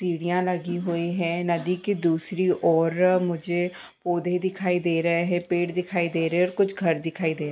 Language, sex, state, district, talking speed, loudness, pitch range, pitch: Hindi, female, Jharkhand, Jamtara, 200 wpm, -25 LUFS, 170-180 Hz, 175 Hz